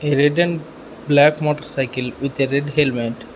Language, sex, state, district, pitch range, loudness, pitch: English, male, Arunachal Pradesh, Lower Dibang Valley, 135-150 Hz, -18 LUFS, 145 Hz